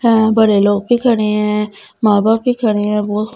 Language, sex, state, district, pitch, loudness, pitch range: Hindi, female, Delhi, New Delhi, 215 Hz, -14 LUFS, 210-225 Hz